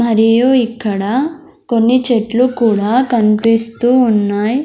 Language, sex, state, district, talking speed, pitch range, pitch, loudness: Telugu, male, Andhra Pradesh, Sri Satya Sai, 90 wpm, 220-255 Hz, 235 Hz, -13 LUFS